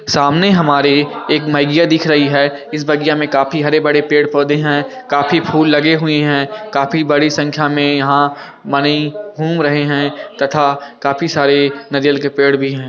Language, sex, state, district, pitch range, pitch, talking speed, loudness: Hindi, male, Bihar, Gaya, 140-155 Hz, 145 Hz, 170 wpm, -13 LUFS